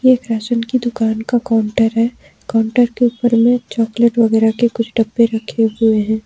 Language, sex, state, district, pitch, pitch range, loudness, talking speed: Hindi, female, Jharkhand, Ranchi, 230 Hz, 225-240 Hz, -15 LUFS, 180 wpm